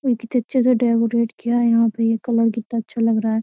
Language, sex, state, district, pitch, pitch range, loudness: Hindi, female, Uttar Pradesh, Jyotiba Phule Nagar, 230 Hz, 230-240 Hz, -19 LUFS